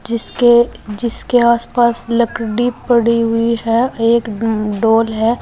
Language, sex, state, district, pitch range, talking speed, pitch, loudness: Hindi, female, Uttar Pradesh, Saharanpur, 225-235 Hz, 120 wpm, 235 Hz, -15 LUFS